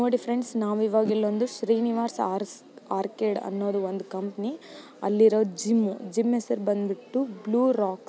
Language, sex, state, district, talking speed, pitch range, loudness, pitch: Kannada, female, Karnataka, Mysore, 135 wpm, 200-235 Hz, -26 LUFS, 220 Hz